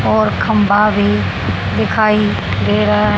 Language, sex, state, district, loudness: Hindi, female, Haryana, Charkhi Dadri, -14 LUFS